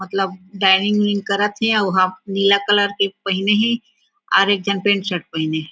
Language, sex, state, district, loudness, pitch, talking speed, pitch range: Chhattisgarhi, female, Chhattisgarh, Raigarh, -18 LUFS, 200 Hz, 190 wpm, 190-205 Hz